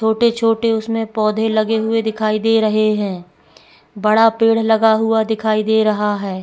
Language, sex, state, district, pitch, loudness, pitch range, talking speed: Hindi, female, Goa, North and South Goa, 220 Hz, -16 LUFS, 215-225 Hz, 160 wpm